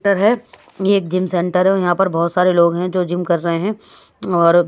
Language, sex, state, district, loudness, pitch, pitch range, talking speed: Hindi, female, Haryana, Jhajjar, -17 LUFS, 180 Hz, 170-195 Hz, 230 wpm